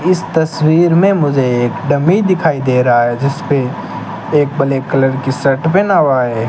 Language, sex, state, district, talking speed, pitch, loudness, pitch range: Hindi, male, Rajasthan, Bikaner, 185 wpm, 140 Hz, -13 LUFS, 125-160 Hz